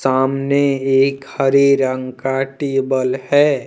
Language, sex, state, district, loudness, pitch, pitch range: Hindi, male, Jharkhand, Deoghar, -16 LUFS, 135 Hz, 130-140 Hz